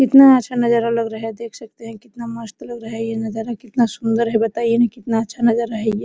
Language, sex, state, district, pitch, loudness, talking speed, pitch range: Hindi, female, Jharkhand, Sahebganj, 230 Hz, -18 LUFS, 260 wpm, 225-235 Hz